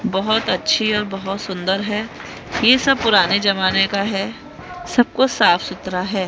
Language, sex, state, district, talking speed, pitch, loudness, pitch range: Hindi, female, Rajasthan, Jaipur, 160 wpm, 200 Hz, -18 LUFS, 190-225 Hz